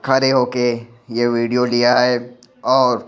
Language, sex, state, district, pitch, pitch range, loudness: Hindi, male, Bihar, Patna, 125 Hz, 120-125 Hz, -17 LUFS